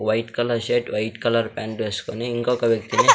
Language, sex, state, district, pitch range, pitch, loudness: Telugu, male, Andhra Pradesh, Sri Satya Sai, 110-120 Hz, 115 Hz, -23 LUFS